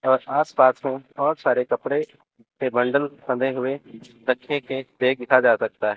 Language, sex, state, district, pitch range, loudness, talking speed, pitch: Hindi, male, Chandigarh, Chandigarh, 130-140 Hz, -22 LUFS, 170 wpm, 130 Hz